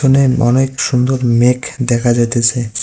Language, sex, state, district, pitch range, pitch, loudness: Bengali, male, West Bengal, Cooch Behar, 120-130 Hz, 125 Hz, -13 LUFS